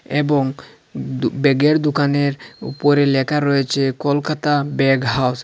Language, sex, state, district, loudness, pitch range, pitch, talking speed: Bengali, male, Assam, Hailakandi, -18 LUFS, 135-145 Hz, 140 Hz, 110 wpm